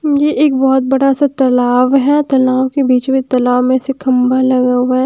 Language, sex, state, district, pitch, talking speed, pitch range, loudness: Hindi, female, Bihar, Katihar, 260 Hz, 215 wpm, 255-275 Hz, -12 LUFS